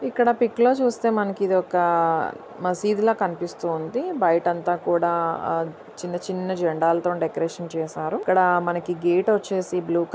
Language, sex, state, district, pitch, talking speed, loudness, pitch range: Telugu, female, Andhra Pradesh, Anantapur, 175 Hz, 100 wpm, -23 LUFS, 170-195 Hz